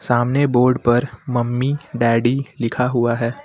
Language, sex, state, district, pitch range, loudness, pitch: Hindi, male, Uttar Pradesh, Lucknow, 120-130 Hz, -18 LUFS, 120 Hz